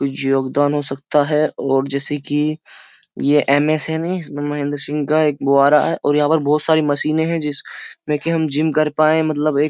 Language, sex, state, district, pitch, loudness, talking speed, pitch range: Hindi, male, Uttar Pradesh, Jyotiba Phule Nagar, 150 Hz, -17 LUFS, 225 wpm, 145-155 Hz